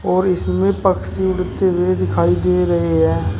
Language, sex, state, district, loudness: Hindi, male, Uttar Pradesh, Shamli, -17 LUFS